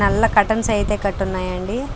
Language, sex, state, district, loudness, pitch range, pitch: Telugu, female, Andhra Pradesh, Krishna, -19 LUFS, 195-220 Hz, 205 Hz